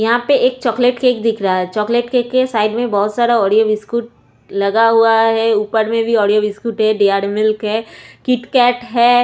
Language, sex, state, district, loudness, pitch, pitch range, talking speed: Hindi, female, Chhattisgarh, Sukma, -15 LUFS, 225 Hz, 210-240 Hz, 160 wpm